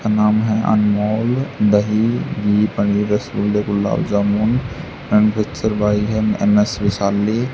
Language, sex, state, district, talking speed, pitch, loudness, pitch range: Hindi, male, Haryana, Charkhi Dadri, 110 wpm, 105 Hz, -17 LUFS, 105-110 Hz